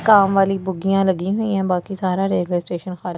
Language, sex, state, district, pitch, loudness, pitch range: Hindi, female, Delhi, New Delhi, 190 Hz, -19 LUFS, 180-195 Hz